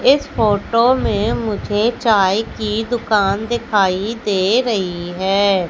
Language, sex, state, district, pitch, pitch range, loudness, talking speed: Hindi, female, Madhya Pradesh, Katni, 210 Hz, 195-230 Hz, -17 LUFS, 115 wpm